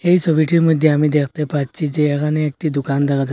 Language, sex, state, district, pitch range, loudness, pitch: Bengali, male, Assam, Hailakandi, 145-155 Hz, -17 LUFS, 150 Hz